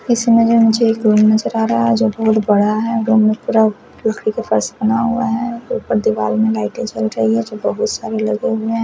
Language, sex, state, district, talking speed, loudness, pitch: Hindi, female, Chhattisgarh, Raipur, 260 wpm, -16 LUFS, 220 Hz